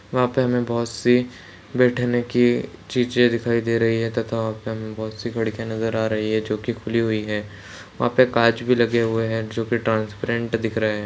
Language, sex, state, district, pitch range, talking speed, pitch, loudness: Hindi, male, Chhattisgarh, Rajnandgaon, 110-120 Hz, 210 wpm, 115 Hz, -22 LUFS